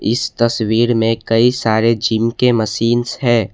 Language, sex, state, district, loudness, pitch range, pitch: Hindi, male, Assam, Kamrup Metropolitan, -15 LUFS, 115-120 Hz, 115 Hz